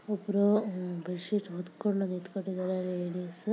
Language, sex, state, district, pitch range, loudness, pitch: Kannada, female, Karnataka, Dakshina Kannada, 180-205 Hz, -32 LUFS, 185 Hz